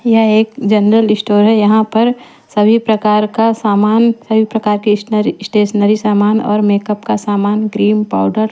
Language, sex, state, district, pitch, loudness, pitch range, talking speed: Hindi, female, Chhattisgarh, Raipur, 215 Hz, -12 LUFS, 210-220 Hz, 170 wpm